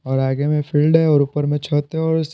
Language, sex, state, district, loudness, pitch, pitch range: Hindi, male, Bihar, Patna, -18 LUFS, 145 Hz, 145-160 Hz